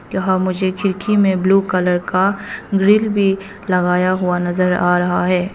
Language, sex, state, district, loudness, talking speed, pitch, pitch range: Hindi, female, Arunachal Pradesh, Papum Pare, -16 LUFS, 160 wpm, 185 Hz, 180-195 Hz